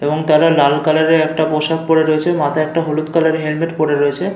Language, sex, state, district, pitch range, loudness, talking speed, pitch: Bengali, male, West Bengal, Paschim Medinipur, 155-160 Hz, -15 LUFS, 275 wpm, 155 Hz